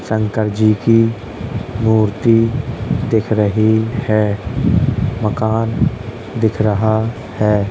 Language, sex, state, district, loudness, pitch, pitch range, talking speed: Hindi, male, Uttar Pradesh, Jalaun, -16 LUFS, 110 Hz, 105-115 Hz, 85 wpm